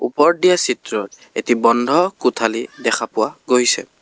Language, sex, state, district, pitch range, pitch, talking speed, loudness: Assamese, male, Assam, Kamrup Metropolitan, 115-175 Hz, 125 Hz, 135 wpm, -17 LUFS